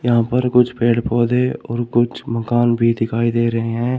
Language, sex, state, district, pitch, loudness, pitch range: Hindi, male, Uttar Pradesh, Shamli, 120 Hz, -17 LUFS, 115-120 Hz